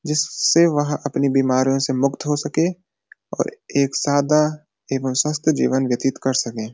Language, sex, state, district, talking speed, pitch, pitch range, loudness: Hindi, male, Uttarakhand, Uttarkashi, 150 wpm, 145 Hz, 130-150 Hz, -20 LUFS